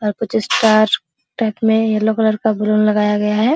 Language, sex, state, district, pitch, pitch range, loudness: Hindi, female, Bihar, Araria, 215 Hz, 215-220 Hz, -16 LUFS